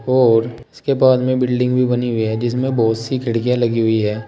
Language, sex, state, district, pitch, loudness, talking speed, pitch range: Hindi, male, Uttar Pradesh, Saharanpur, 120 Hz, -17 LUFS, 225 wpm, 115-130 Hz